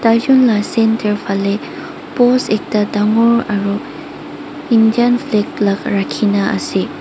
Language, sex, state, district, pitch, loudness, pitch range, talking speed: Nagamese, female, Mizoram, Aizawl, 225 Hz, -15 LUFS, 205-245 Hz, 110 wpm